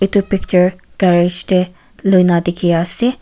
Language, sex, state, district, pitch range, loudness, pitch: Nagamese, female, Nagaland, Kohima, 175-195 Hz, -14 LUFS, 180 Hz